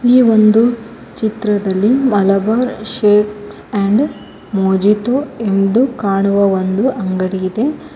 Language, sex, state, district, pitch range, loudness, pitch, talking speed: Kannada, female, Karnataka, Koppal, 195-240 Hz, -14 LUFS, 210 Hz, 90 wpm